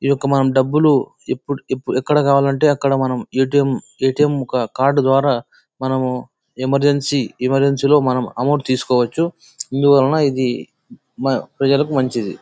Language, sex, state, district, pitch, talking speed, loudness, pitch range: Telugu, male, Andhra Pradesh, Anantapur, 135 Hz, 110 wpm, -17 LUFS, 130-145 Hz